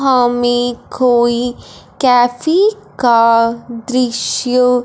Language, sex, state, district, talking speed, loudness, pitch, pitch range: Hindi, female, Punjab, Fazilka, 60 wpm, -14 LUFS, 245 Hz, 240-250 Hz